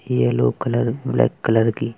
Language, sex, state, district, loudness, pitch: Hindi, male, Uttar Pradesh, Etah, -20 LUFS, 115 Hz